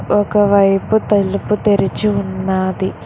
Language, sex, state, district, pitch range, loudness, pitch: Telugu, female, Telangana, Hyderabad, 190-210 Hz, -15 LUFS, 200 Hz